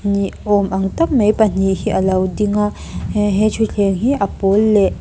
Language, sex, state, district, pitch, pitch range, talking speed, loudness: Mizo, female, Mizoram, Aizawl, 205 Hz, 195-215 Hz, 190 wpm, -16 LUFS